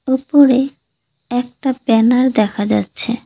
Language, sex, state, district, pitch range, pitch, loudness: Bengali, female, West Bengal, Cooch Behar, 225-260 Hz, 245 Hz, -15 LUFS